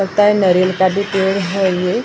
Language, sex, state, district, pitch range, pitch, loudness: Hindi, female, Maharashtra, Gondia, 185-200 Hz, 190 Hz, -15 LUFS